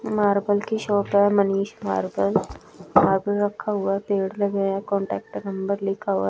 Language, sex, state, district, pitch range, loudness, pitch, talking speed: Hindi, female, Chhattisgarh, Raipur, 195-205 Hz, -23 LUFS, 200 Hz, 160 wpm